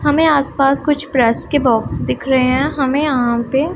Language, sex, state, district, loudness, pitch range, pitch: Hindi, female, Punjab, Pathankot, -15 LUFS, 245-295 Hz, 270 Hz